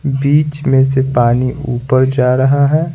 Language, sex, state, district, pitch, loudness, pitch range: Hindi, male, Bihar, Patna, 135 Hz, -13 LUFS, 130-145 Hz